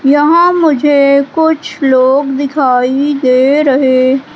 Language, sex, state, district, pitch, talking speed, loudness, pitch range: Hindi, female, Madhya Pradesh, Katni, 280 Hz, 95 wpm, -10 LUFS, 265-295 Hz